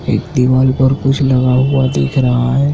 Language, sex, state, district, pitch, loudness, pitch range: Hindi, male, Madhya Pradesh, Dhar, 130 Hz, -13 LUFS, 125-135 Hz